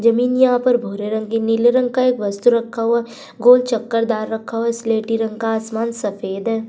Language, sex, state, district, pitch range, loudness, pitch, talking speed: Hindi, female, Uttar Pradesh, Budaun, 225-240 Hz, -18 LUFS, 230 Hz, 215 wpm